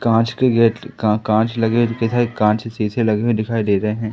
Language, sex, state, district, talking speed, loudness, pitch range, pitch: Hindi, male, Madhya Pradesh, Katni, 260 wpm, -18 LUFS, 110-115 Hz, 115 Hz